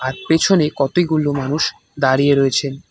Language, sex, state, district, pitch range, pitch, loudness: Bengali, male, West Bengal, Cooch Behar, 135-160 Hz, 140 Hz, -17 LUFS